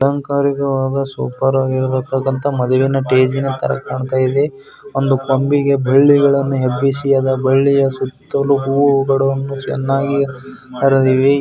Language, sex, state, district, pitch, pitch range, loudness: Kannada, male, Karnataka, Bijapur, 135 Hz, 130-140 Hz, -15 LUFS